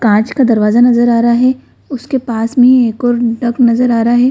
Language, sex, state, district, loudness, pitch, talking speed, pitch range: Hindi, female, Bihar, Gaya, -11 LUFS, 240 Hz, 235 wpm, 230-250 Hz